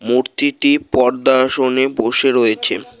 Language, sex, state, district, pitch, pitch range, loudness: Bengali, male, West Bengal, Alipurduar, 130 Hz, 125-145 Hz, -15 LUFS